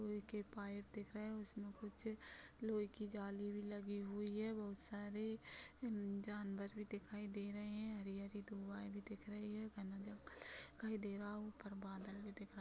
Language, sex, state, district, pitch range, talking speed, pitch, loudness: Hindi, female, Chhattisgarh, Bilaspur, 200-210 Hz, 190 wpm, 205 Hz, -49 LUFS